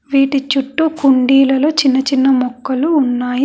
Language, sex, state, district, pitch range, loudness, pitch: Telugu, female, Telangana, Hyderabad, 265-280 Hz, -14 LUFS, 270 Hz